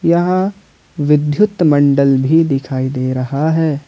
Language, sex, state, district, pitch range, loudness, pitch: Hindi, male, Jharkhand, Ranchi, 135-165 Hz, -14 LUFS, 150 Hz